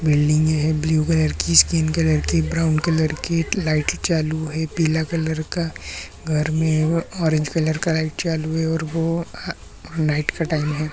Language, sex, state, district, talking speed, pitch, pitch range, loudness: Marathi, male, Maharashtra, Chandrapur, 170 wpm, 155 Hz, 150-160 Hz, -20 LUFS